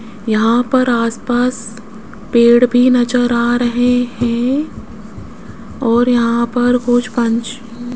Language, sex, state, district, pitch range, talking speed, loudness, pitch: Hindi, female, Rajasthan, Jaipur, 230-245 Hz, 115 wpm, -14 LUFS, 240 Hz